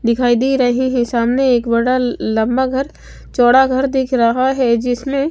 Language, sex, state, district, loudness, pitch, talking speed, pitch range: Hindi, female, Bihar, West Champaran, -15 LUFS, 250 Hz, 180 wpm, 240-265 Hz